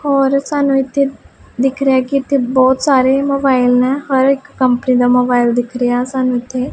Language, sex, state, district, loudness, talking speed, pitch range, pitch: Punjabi, female, Punjab, Pathankot, -14 LUFS, 185 wpm, 250-275 Hz, 265 Hz